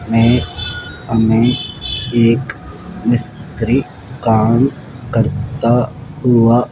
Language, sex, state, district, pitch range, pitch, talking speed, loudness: Hindi, male, Rajasthan, Jaipur, 115-125 Hz, 120 Hz, 70 wpm, -15 LUFS